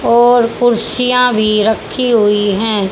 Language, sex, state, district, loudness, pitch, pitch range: Hindi, female, Haryana, Charkhi Dadri, -12 LUFS, 230 Hz, 215-245 Hz